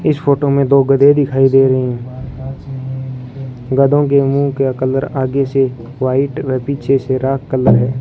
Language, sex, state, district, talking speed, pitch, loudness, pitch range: Hindi, male, Rajasthan, Bikaner, 170 wpm, 135 Hz, -14 LUFS, 130-140 Hz